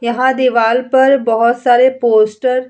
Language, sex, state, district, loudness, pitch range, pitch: Hindi, female, Uttar Pradesh, Jalaun, -12 LUFS, 235-255 Hz, 245 Hz